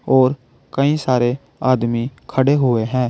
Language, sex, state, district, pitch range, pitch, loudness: Hindi, male, Uttar Pradesh, Saharanpur, 120-135 Hz, 130 Hz, -18 LUFS